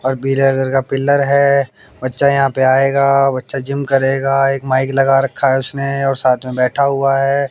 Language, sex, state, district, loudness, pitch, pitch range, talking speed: Hindi, male, Haryana, Jhajjar, -15 LUFS, 135 Hz, 135-140 Hz, 200 wpm